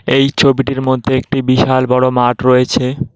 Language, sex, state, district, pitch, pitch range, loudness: Bengali, male, West Bengal, Cooch Behar, 130 Hz, 125-135 Hz, -13 LUFS